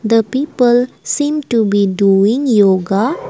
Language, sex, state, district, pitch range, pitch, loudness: English, female, Assam, Kamrup Metropolitan, 200-270 Hz, 230 Hz, -14 LUFS